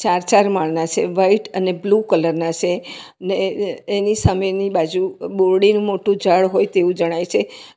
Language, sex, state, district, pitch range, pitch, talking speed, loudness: Gujarati, female, Gujarat, Valsad, 175-200 Hz, 190 Hz, 145 wpm, -18 LUFS